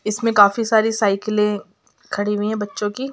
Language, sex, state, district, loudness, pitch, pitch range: Hindi, female, Bihar, Saharsa, -19 LUFS, 210 Hz, 205-225 Hz